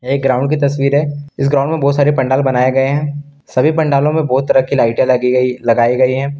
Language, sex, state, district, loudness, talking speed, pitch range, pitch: Hindi, male, Jharkhand, Deoghar, -14 LUFS, 245 wpm, 130-145 Hz, 140 Hz